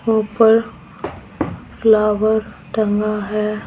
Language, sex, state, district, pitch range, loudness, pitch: Hindi, female, Bihar, Patna, 210-220 Hz, -17 LUFS, 215 Hz